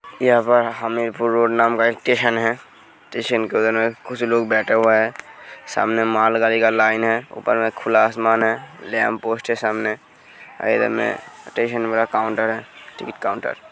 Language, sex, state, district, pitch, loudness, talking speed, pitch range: Hindi, male, Uttar Pradesh, Hamirpur, 115 Hz, -19 LUFS, 165 wpm, 110-115 Hz